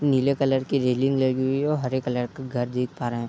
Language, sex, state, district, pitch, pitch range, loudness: Hindi, male, Bihar, Darbhanga, 130 Hz, 125-135 Hz, -24 LUFS